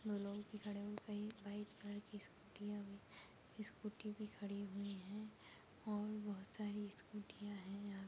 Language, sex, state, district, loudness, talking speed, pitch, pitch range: Hindi, female, Chhattisgarh, Raigarh, -50 LUFS, 155 wpm, 205 Hz, 200-210 Hz